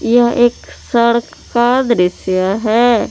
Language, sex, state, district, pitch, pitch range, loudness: Hindi, female, Jharkhand, Palamu, 235 Hz, 220-240 Hz, -14 LUFS